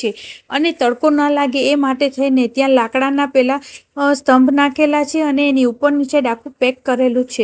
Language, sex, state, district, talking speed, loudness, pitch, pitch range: Gujarati, female, Gujarat, Gandhinagar, 175 wpm, -15 LUFS, 275 Hz, 255-285 Hz